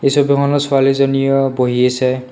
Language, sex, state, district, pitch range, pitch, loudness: Assamese, male, Assam, Kamrup Metropolitan, 130-140 Hz, 135 Hz, -14 LUFS